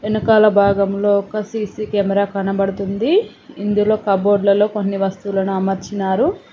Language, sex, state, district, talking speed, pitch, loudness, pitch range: Telugu, female, Telangana, Mahabubabad, 120 wpm, 200 Hz, -17 LUFS, 195-210 Hz